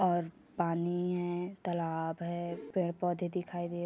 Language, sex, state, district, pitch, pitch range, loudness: Hindi, female, Chhattisgarh, Kabirdham, 175 Hz, 170-180 Hz, -35 LUFS